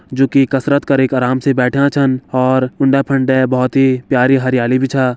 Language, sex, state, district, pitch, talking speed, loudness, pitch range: Garhwali, male, Uttarakhand, Tehri Garhwal, 130 Hz, 185 wpm, -14 LUFS, 130-135 Hz